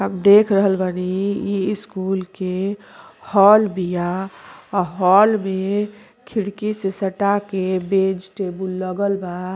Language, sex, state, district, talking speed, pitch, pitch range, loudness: Bhojpuri, female, Uttar Pradesh, Gorakhpur, 130 wpm, 195 Hz, 185-200 Hz, -19 LUFS